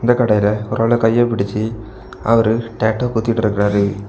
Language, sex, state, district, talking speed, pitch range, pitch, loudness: Tamil, male, Tamil Nadu, Kanyakumari, 145 wpm, 105-115 Hz, 110 Hz, -17 LUFS